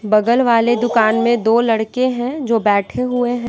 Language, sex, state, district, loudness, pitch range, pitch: Hindi, female, Bihar, West Champaran, -16 LUFS, 225-245 Hz, 235 Hz